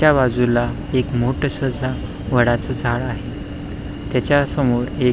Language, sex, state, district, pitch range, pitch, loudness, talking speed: Marathi, male, Maharashtra, Pune, 120-135 Hz, 125 Hz, -19 LUFS, 130 wpm